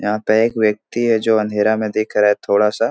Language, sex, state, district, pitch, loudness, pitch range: Hindi, male, Bihar, Supaul, 110 Hz, -17 LUFS, 105-110 Hz